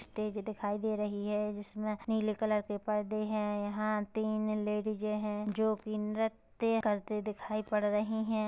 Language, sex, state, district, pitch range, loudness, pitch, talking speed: Hindi, female, Chhattisgarh, Kabirdham, 210-215 Hz, -34 LUFS, 215 Hz, 165 wpm